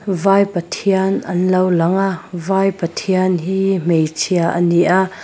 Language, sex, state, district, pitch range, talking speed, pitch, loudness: Mizo, female, Mizoram, Aizawl, 175-195 Hz, 125 wpm, 185 Hz, -16 LUFS